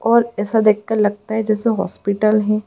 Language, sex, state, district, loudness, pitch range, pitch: Hindi, female, Madhya Pradesh, Dhar, -18 LUFS, 210-225 Hz, 215 Hz